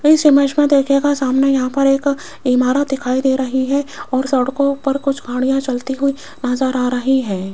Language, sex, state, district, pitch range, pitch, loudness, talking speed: Hindi, female, Rajasthan, Jaipur, 260-280 Hz, 270 Hz, -16 LUFS, 190 wpm